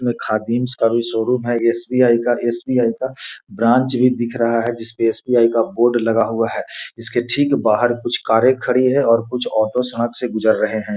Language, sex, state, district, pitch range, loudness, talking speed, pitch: Hindi, male, Bihar, Gopalganj, 115-125 Hz, -17 LUFS, 200 wpm, 120 Hz